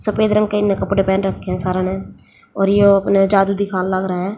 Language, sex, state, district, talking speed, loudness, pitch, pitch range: Hindi, female, Haryana, Jhajjar, 245 wpm, -16 LUFS, 195 Hz, 190-200 Hz